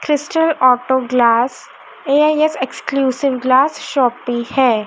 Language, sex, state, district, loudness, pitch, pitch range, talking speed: Hindi, female, Madhya Pradesh, Dhar, -15 LUFS, 260 Hz, 250-290 Hz, 100 wpm